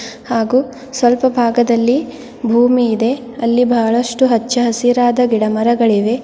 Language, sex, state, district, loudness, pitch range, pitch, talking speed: Kannada, female, Karnataka, Bidar, -14 LUFS, 230-250 Hz, 240 Hz, 105 wpm